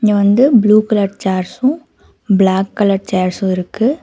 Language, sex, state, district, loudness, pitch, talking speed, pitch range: Tamil, female, Karnataka, Bangalore, -14 LUFS, 200 Hz, 135 wpm, 190-220 Hz